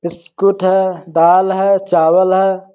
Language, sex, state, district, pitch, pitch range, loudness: Hindi, male, Bihar, East Champaran, 185 Hz, 175-190 Hz, -13 LUFS